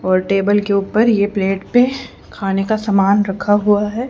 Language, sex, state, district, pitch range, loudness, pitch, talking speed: Hindi, female, Haryana, Charkhi Dadri, 195-220 Hz, -16 LUFS, 205 Hz, 190 wpm